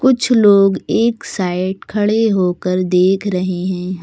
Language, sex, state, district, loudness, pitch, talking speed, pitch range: Hindi, female, Uttar Pradesh, Lucknow, -15 LUFS, 195 Hz, 135 wpm, 185-215 Hz